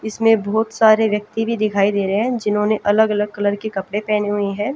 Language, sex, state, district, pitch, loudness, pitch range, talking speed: Hindi, female, Haryana, Jhajjar, 210 Hz, -18 LUFS, 205-220 Hz, 240 wpm